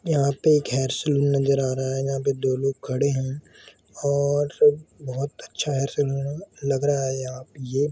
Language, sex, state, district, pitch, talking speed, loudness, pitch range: Hindi, male, Jharkhand, Sahebganj, 140 Hz, 195 wpm, -24 LUFS, 135-145 Hz